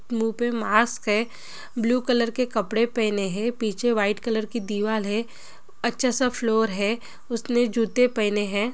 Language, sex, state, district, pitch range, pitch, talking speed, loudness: Hindi, female, Bihar, Gopalganj, 215-240 Hz, 225 Hz, 170 wpm, -24 LUFS